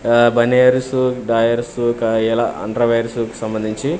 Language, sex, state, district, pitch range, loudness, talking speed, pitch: Telugu, male, Andhra Pradesh, Manyam, 115-125 Hz, -17 LUFS, 120 wpm, 120 Hz